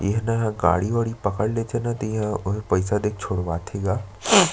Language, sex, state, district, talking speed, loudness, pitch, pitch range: Chhattisgarhi, male, Chhattisgarh, Sarguja, 170 wpm, -23 LUFS, 105 Hz, 95-110 Hz